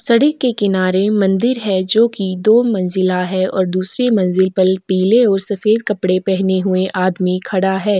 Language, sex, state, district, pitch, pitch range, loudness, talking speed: Hindi, female, Goa, North and South Goa, 190 Hz, 185-215 Hz, -15 LUFS, 170 wpm